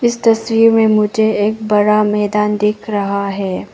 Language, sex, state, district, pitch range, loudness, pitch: Hindi, female, Arunachal Pradesh, Papum Pare, 210-220 Hz, -14 LUFS, 210 Hz